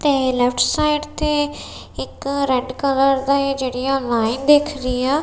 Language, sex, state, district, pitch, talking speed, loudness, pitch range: Punjabi, female, Punjab, Kapurthala, 275 Hz, 160 wpm, -19 LUFS, 255-290 Hz